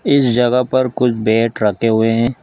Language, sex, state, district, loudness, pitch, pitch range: Hindi, male, Chhattisgarh, Bilaspur, -15 LUFS, 120 Hz, 115-125 Hz